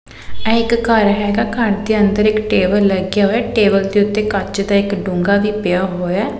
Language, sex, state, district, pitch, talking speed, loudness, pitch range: Punjabi, female, Punjab, Pathankot, 205 Hz, 195 wpm, -15 LUFS, 195-215 Hz